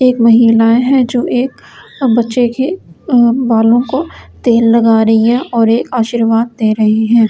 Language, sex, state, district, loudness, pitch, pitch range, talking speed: Hindi, female, Delhi, New Delhi, -11 LUFS, 235 Hz, 225-250 Hz, 165 wpm